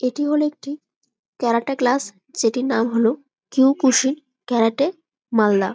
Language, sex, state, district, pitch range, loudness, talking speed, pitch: Bengali, female, West Bengal, Malda, 230-285 Hz, -20 LUFS, 135 wpm, 260 Hz